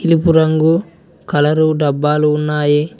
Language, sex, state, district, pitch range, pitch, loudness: Telugu, male, Telangana, Mahabubabad, 150-165 Hz, 155 Hz, -14 LUFS